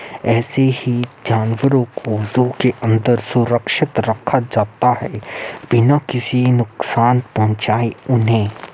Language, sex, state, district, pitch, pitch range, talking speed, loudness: Hindi, male, Uttar Pradesh, Muzaffarnagar, 120 Hz, 110-125 Hz, 110 wpm, -17 LUFS